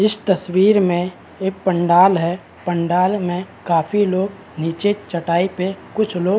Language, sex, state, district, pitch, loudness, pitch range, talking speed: Hindi, male, Uttarakhand, Uttarkashi, 185 Hz, -18 LUFS, 175-195 Hz, 150 wpm